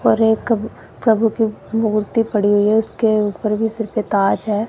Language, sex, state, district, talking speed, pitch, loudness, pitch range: Hindi, female, Punjab, Kapurthala, 190 wpm, 220 Hz, -18 LUFS, 210-225 Hz